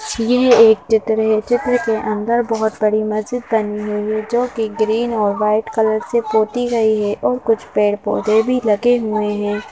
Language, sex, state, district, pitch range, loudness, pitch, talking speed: Hindi, female, Madhya Pradesh, Bhopal, 215-235 Hz, -17 LUFS, 220 Hz, 165 wpm